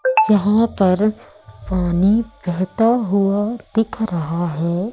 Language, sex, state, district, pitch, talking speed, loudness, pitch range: Hindi, female, Madhya Pradesh, Umaria, 205 Hz, 95 wpm, -18 LUFS, 180-225 Hz